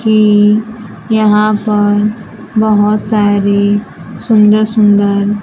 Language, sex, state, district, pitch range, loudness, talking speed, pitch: Hindi, female, Bihar, Kaimur, 205-215 Hz, -11 LUFS, 75 wpm, 210 Hz